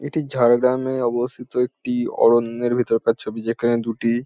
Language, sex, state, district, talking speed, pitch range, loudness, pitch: Bengali, male, West Bengal, Jhargram, 140 wpm, 115-125 Hz, -20 LUFS, 120 Hz